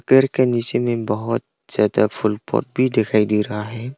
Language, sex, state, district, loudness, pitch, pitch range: Hindi, male, Arunachal Pradesh, Longding, -19 LUFS, 115 Hz, 105-125 Hz